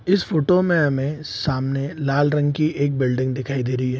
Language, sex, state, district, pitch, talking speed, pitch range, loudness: Hindi, male, Bihar, Saharsa, 145 Hz, 210 wpm, 130-155 Hz, -21 LUFS